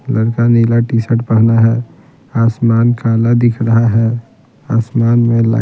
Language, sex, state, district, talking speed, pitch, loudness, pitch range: Hindi, male, Bihar, Patna, 140 wpm, 115 Hz, -13 LUFS, 115-120 Hz